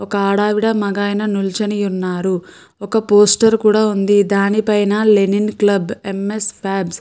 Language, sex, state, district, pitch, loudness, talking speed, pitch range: Telugu, female, Andhra Pradesh, Krishna, 205 Hz, -15 LUFS, 130 wpm, 195-210 Hz